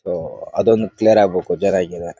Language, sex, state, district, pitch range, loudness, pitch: Kannada, male, Karnataka, Bijapur, 90-115 Hz, -17 LUFS, 105 Hz